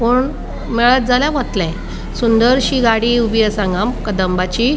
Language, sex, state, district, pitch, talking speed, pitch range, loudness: Konkani, female, Goa, North and South Goa, 235 Hz, 125 wpm, 210-250 Hz, -15 LUFS